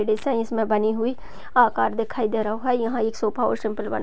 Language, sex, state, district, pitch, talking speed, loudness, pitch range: Hindi, female, Uttar Pradesh, Budaun, 225 Hz, 195 wpm, -23 LUFS, 215-235 Hz